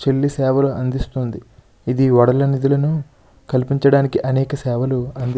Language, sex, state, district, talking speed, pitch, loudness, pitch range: Telugu, male, Andhra Pradesh, Srikakulam, 125 wpm, 130 Hz, -18 LUFS, 125-140 Hz